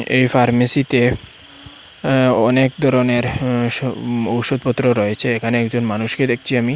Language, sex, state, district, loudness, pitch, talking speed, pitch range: Bengali, male, Assam, Hailakandi, -17 LUFS, 125 Hz, 125 wpm, 120-130 Hz